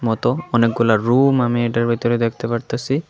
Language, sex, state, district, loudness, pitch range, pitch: Bengali, female, Tripura, West Tripura, -18 LUFS, 115-120 Hz, 120 Hz